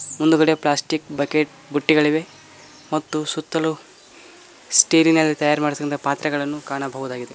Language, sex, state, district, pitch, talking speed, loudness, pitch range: Kannada, male, Karnataka, Koppal, 150 Hz, 80 wpm, -20 LUFS, 145-155 Hz